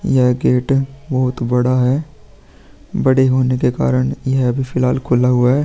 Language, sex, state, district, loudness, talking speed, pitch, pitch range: Hindi, male, Bihar, Vaishali, -16 LUFS, 160 wpm, 130 Hz, 125-130 Hz